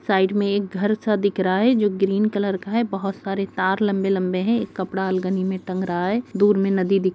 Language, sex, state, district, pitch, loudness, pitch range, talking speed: Hindi, female, Uttar Pradesh, Jyotiba Phule Nagar, 195 Hz, -21 LUFS, 190-205 Hz, 295 wpm